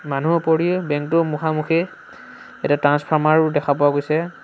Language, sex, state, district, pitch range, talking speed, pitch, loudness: Assamese, male, Assam, Sonitpur, 145-165 Hz, 135 wpm, 155 Hz, -19 LUFS